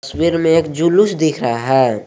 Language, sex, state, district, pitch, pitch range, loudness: Hindi, male, Jharkhand, Garhwa, 155 Hz, 130-165 Hz, -15 LUFS